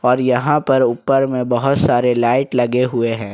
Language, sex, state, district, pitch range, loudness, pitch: Hindi, male, Jharkhand, Ranchi, 120-135 Hz, -16 LUFS, 125 Hz